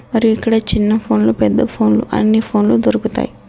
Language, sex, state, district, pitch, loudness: Telugu, female, Telangana, Adilabad, 210 Hz, -14 LUFS